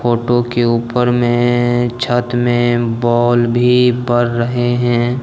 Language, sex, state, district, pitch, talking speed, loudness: Hindi, male, Jharkhand, Deoghar, 120 Hz, 125 wpm, -14 LUFS